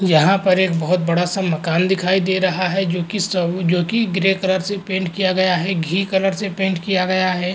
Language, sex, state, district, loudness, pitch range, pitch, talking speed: Hindi, male, Uttar Pradesh, Muzaffarnagar, -18 LUFS, 180-190 Hz, 185 Hz, 240 wpm